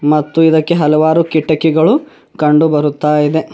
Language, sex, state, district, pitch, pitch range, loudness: Kannada, male, Karnataka, Bidar, 155 Hz, 150-160 Hz, -12 LUFS